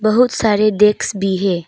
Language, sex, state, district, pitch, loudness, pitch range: Hindi, female, Arunachal Pradesh, Papum Pare, 210 Hz, -15 LUFS, 195-215 Hz